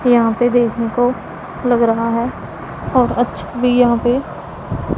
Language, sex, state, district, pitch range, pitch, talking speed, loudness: Hindi, female, Punjab, Pathankot, 235-245 Hz, 240 Hz, 145 wpm, -16 LUFS